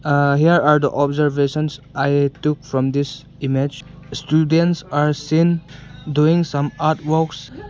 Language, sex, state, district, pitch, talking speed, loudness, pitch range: English, male, Arunachal Pradesh, Longding, 150 Hz, 125 wpm, -18 LUFS, 140-155 Hz